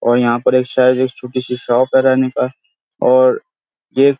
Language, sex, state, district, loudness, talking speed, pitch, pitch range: Hindi, male, Uttarakhand, Uttarkashi, -15 LUFS, 170 wpm, 130 Hz, 125-140 Hz